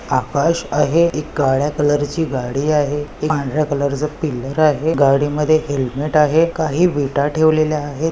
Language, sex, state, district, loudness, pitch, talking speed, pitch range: Marathi, male, Maharashtra, Nagpur, -17 LUFS, 150 Hz, 150 wpm, 140-155 Hz